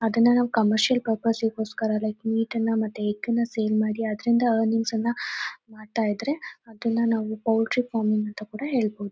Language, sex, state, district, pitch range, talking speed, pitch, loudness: Kannada, female, Karnataka, Shimoga, 215-235 Hz, 160 wpm, 225 Hz, -25 LUFS